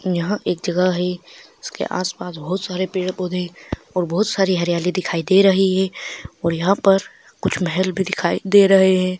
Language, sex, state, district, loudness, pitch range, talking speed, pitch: Hindi, male, Maharashtra, Solapur, -19 LUFS, 180-190 Hz, 190 wpm, 185 Hz